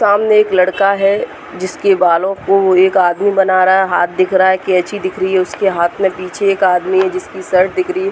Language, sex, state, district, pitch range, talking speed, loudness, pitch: Hindi, female, Uttar Pradesh, Deoria, 185-200 Hz, 235 wpm, -13 LUFS, 190 Hz